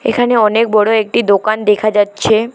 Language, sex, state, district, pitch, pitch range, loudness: Bengali, female, West Bengal, Alipurduar, 215 Hz, 210-225 Hz, -12 LUFS